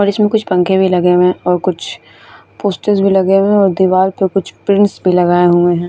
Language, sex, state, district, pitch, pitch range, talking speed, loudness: Hindi, female, Bihar, Vaishali, 190 Hz, 180-200 Hz, 245 wpm, -12 LUFS